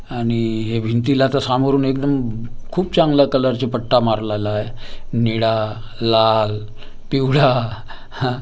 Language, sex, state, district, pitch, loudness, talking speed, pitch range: Marathi, male, Maharashtra, Gondia, 115 Hz, -18 LUFS, 115 wpm, 110-135 Hz